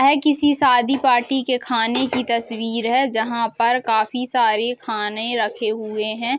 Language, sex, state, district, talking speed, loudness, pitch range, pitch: Hindi, female, Uttar Pradesh, Jalaun, 160 wpm, -19 LUFS, 225-255 Hz, 235 Hz